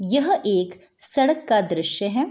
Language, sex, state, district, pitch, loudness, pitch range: Hindi, female, Bihar, Bhagalpur, 205 Hz, -21 LUFS, 185-270 Hz